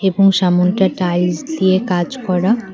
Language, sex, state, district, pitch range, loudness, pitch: Bengali, female, West Bengal, Cooch Behar, 180-195 Hz, -15 LUFS, 185 Hz